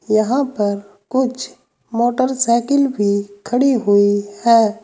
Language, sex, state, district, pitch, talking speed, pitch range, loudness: Hindi, male, Uttar Pradesh, Saharanpur, 230 Hz, 100 wpm, 205-255 Hz, -17 LUFS